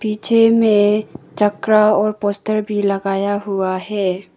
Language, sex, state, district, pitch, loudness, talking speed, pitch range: Hindi, female, Arunachal Pradesh, Papum Pare, 205 Hz, -16 LUFS, 125 wpm, 195-215 Hz